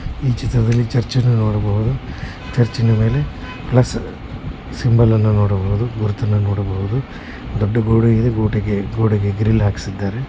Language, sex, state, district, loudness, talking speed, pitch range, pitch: Kannada, male, Karnataka, Bellary, -17 LUFS, 105 wpm, 105-120 Hz, 110 Hz